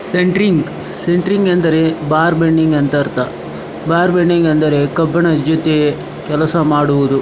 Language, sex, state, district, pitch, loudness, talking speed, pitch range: Kannada, male, Karnataka, Dharwad, 160 Hz, -14 LUFS, 100 wpm, 150-175 Hz